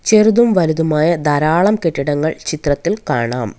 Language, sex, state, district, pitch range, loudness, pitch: Malayalam, female, Kerala, Kollam, 145-180 Hz, -15 LUFS, 155 Hz